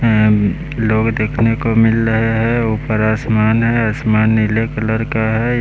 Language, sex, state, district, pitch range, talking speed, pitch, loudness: Hindi, male, Bihar, West Champaran, 110-115 Hz, 160 wpm, 110 Hz, -15 LUFS